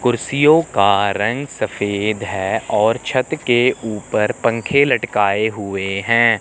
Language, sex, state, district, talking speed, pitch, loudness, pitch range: Hindi, male, Chandigarh, Chandigarh, 130 wpm, 115 Hz, -17 LUFS, 100-125 Hz